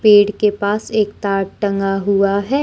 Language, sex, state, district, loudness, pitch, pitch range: Hindi, female, Jharkhand, Deoghar, -17 LUFS, 205 Hz, 195-210 Hz